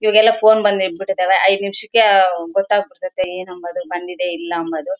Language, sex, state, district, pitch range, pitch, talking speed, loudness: Kannada, female, Karnataka, Bellary, 180-215 Hz, 195 Hz, 155 wpm, -16 LUFS